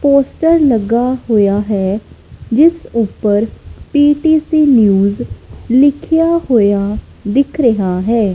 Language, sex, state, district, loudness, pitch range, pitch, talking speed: Punjabi, female, Punjab, Kapurthala, -13 LUFS, 205-290 Hz, 240 Hz, 95 wpm